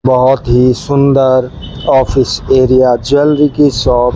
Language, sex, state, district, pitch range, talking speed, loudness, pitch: Hindi, male, Rajasthan, Bikaner, 125-140 Hz, 130 wpm, -10 LUFS, 130 Hz